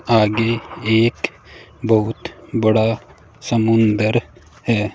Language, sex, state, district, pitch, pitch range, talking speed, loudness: Hindi, male, Rajasthan, Jaipur, 110 Hz, 105-115 Hz, 75 wpm, -18 LUFS